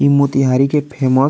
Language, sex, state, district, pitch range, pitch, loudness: Bhojpuri, male, Bihar, East Champaran, 135-140 Hz, 135 Hz, -15 LUFS